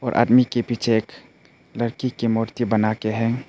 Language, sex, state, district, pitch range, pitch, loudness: Hindi, male, Arunachal Pradesh, Papum Pare, 110-120 Hz, 120 Hz, -21 LUFS